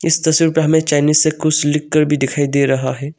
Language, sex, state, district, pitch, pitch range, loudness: Hindi, male, Arunachal Pradesh, Longding, 150 Hz, 145-160 Hz, -15 LUFS